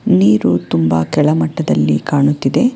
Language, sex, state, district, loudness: Kannada, female, Karnataka, Bangalore, -14 LUFS